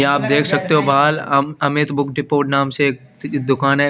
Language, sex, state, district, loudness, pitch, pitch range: Hindi, male, Chandigarh, Chandigarh, -17 LUFS, 145 Hz, 140-145 Hz